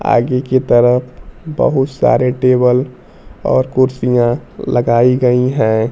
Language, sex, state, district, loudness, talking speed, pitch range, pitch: Hindi, male, Bihar, Kaimur, -13 LUFS, 110 wpm, 120-130 Hz, 125 Hz